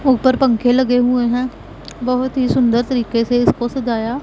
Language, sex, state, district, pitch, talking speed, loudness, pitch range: Hindi, female, Punjab, Pathankot, 250 Hz, 170 wpm, -16 LUFS, 240-255 Hz